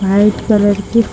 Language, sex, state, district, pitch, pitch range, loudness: Hindi, female, Bihar, Jahanabad, 205 Hz, 200-215 Hz, -13 LUFS